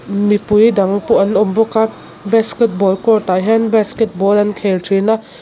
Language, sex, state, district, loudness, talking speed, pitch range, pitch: Mizo, female, Mizoram, Aizawl, -14 LUFS, 165 wpm, 195-220 Hz, 210 Hz